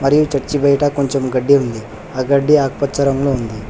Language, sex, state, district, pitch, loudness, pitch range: Telugu, male, Telangana, Hyderabad, 140 Hz, -16 LUFS, 130-140 Hz